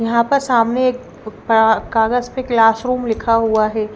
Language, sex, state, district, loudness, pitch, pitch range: Hindi, female, Himachal Pradesh, Shimla, -16 LUFS, 230 Hz, 220-245 Hz